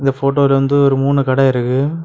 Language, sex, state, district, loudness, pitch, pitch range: Tamil, male, Tamil Nadu, Kanyakumari, -14 LUFS, 135 Hz, 135-140 Hz